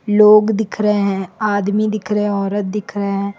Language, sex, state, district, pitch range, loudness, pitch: Hindi, female, Chhattisgarh, Raipur, 200-215 Hz, -16 LUFS, 210 Hz